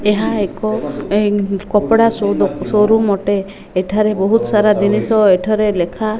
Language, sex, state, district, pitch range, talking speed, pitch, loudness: Odia, female, Odisha, Malkangiri, 200-215 Hz, 135 wpm, 210 Hz, -15 LUFS